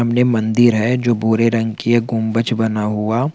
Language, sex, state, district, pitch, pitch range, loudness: Hindi, male, Chhattisgarh, Rajnandgaon, 115 Hz, 110-120 Hz, -16 LUFS